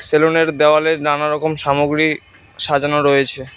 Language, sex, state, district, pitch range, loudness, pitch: Bengali, male, West Bengal, Cooch Behar, 140-155 Hz, -15 LUFS, 150 Hz